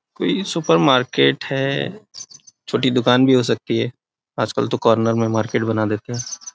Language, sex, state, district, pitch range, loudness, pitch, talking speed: Hindi, male, Chhattisgarh, Raigarh, 115-135 Hz, -19 LUFS, 125 Hz, 175 wpm